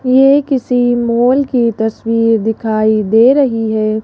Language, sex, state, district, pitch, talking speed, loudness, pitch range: Hindi, female, Rajasthan, Jaipur, 230 Hz, 135 wpm, -12 LUFS, 220-255 Hz